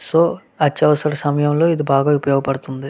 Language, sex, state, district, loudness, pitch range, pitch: Telugu, male, Andhra Pradesh, Visakhapatnam, -17 LUFS, 135-150 Hz, 145 Hz